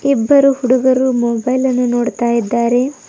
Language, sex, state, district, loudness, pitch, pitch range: Kannada, female, Karnataka, Bidar, -14 LUFS, 255 Hz, 240-260 Hz